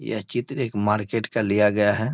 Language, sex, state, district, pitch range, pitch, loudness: Hindi, male, Bihar, Bhagalpur, 105-120 Hz, 110 Hz, -23 LUFS